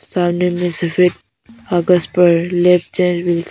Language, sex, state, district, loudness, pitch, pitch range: Hindi, female, Arunachal Pradesh, Papum Pare, -15 LUFS, 175 Hz, 175-180 Hz